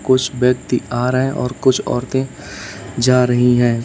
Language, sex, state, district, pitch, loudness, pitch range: Hindi, male, Uttar Pradesh, Lalitpur, 125 Hz, -16 LUFS, 120-130 Hz